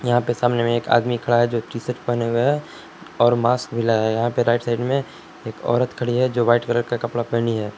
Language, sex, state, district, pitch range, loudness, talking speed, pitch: Hindi, male, Jharkhand, Palamu, 115-120 Hz, -20 LUFS, 260 wpm, 120 Hz